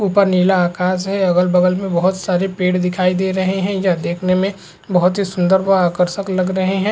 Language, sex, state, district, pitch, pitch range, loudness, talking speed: Hindi, male, Uttar Pradesh, Hamirpur, 185 Hz, 180-190 Hz, -16 LUFS, 215 wpm